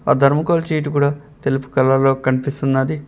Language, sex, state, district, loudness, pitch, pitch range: Telugu, male, Telangana, Mahabubabad, -18 LUFS, 140 Hz, 135-150 Hz